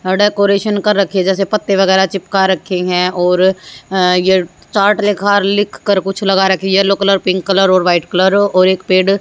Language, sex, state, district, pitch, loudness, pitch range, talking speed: Hindi, female, Haryana, Jhajjar, 190 Hz, -13 LUFS, 185-200 Hz, 175 wpm